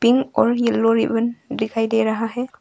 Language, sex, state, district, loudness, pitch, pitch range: Hindi, female, Arunachal Pradesh, Longding, -20 LUFS, 230 Hz, 225-240 Hz